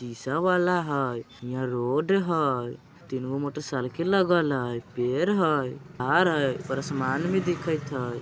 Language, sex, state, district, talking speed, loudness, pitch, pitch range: Bajjika, male, Bihar, Vaishali, 140 wpm, -26 LUFS, 140 Hz, 125-170 Hz